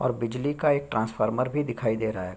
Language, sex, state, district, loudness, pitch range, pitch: Hindi, male, Uttar Pradesh, Gorakhpur, -27 LUFS, 110-140 Hz, 120 Hz